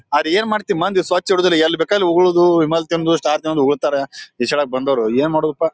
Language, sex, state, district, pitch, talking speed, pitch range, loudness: Kannada, male, Karnataka, Bijapur, 165 Hz, 210 wpm, 150-180 Hz, -16 LUFS